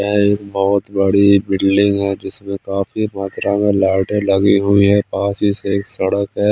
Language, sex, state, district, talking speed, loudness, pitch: Hindi, male, Chandigarh, Chandigarh, 155 wpm, -16 LUFS, 100 Hz